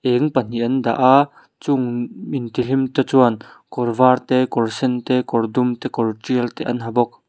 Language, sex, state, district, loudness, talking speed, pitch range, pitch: Mizo, male, Mizoram, Aizawl, -19 LUFS, 205 wpm, 120-130 Hz, 125 Hz